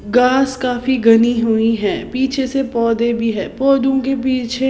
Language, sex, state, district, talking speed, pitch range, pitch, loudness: Hindi, female, Odisha, Sambalpur, 165 wpm, 230-265 Hz, 250 Hz, -16 LUFS